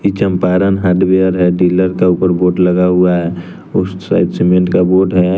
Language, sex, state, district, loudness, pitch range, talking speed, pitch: Hindi, male, Bihar, West Champaran, -12 LUFS, 90-95 Hz, 190 wpm, 90 Hz